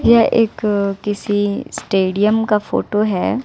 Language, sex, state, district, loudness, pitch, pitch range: Hindi, female, Bihar, West Champaran, -17 LUFS, 210 Hz, 205-225 Hz